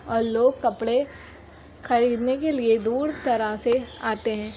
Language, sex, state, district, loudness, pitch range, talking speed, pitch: Hindi, female, Uttar Pradesh, Jyotiba Phule Nagar, -24 LUFS, 225-255 Hz, 145 wpm, 235 Hz